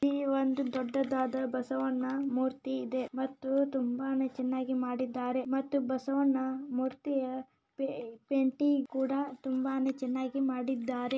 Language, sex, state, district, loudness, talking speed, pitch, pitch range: Kannada, female, Karnataka, Gulbarga, -33 LUFS, 95 wpm, 265 Hz, 255-270 Hz